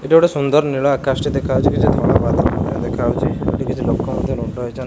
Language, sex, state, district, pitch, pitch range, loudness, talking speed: Odia, male, Odisha, Khordha, 140 Hz, 130-145 Hz, -17 LUFS, 220 wpm